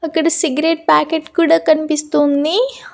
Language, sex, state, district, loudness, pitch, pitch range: Telugu, female, Andhra Pradesh, Annamaya, -15 LUFS, 320 Hz, 310-335 Hz